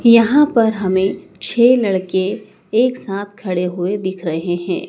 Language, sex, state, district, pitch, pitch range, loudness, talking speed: Hindi, male, Madhya Pradesh, Dhar, 195 Hz, 185-230 Hz, -17 LUFS, 145 wpm